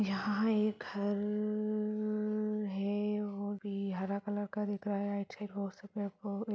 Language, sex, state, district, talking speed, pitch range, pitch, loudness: Hindi, female, Chhattisgarh, Raigarh, 120 wpm, 200-210 Hz, 205 Hz, -36 LUFS